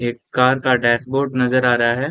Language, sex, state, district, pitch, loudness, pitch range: Hindi, male, Bihar, Saran, 125 Hz, -17 LUFS, 120-130 Hz